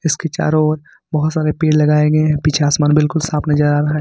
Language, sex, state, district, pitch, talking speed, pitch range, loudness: Hindi, male, Jharkhand, Ranchi, 150 Hz, 255 wpm, 150-155 Hz, -15 LUFS